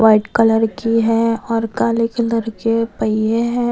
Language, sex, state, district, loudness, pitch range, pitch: Hindi, female, Bihar, West Champaran, -17 LUFS, 225-230 Hz, 230 Hz